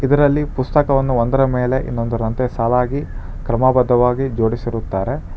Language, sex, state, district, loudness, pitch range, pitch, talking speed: Kannada, male, Karnataka, Bangalore, -17 LUFS, 115-135 Hz, 125 Hz, 90 wpm